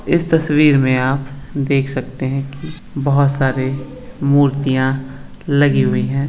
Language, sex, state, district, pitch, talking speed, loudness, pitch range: Hindi, male, Maharashtra, Solapur, 135 Hz, 135 wpm, -16 LUFS, 130-140 Hz